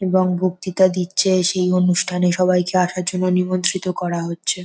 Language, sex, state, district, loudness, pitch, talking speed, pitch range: Bengali, female, West Bengal, North 24 Parganas, -19 LUFS, 180 Hz, 140 wpm, 180-185 Hz